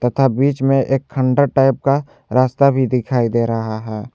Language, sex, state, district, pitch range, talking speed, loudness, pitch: Hindi, male, Jharkhand, Ranchi, 120-135 Hz, 190 wpm, -17 LUFS, 130 Hz